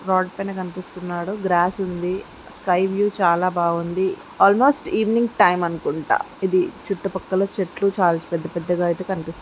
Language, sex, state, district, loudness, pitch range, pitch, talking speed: Telugu, female, Andhra Pradesh, Guntur, -21 LUFS, 175-195 Hz, 185 Hz, 145 wpm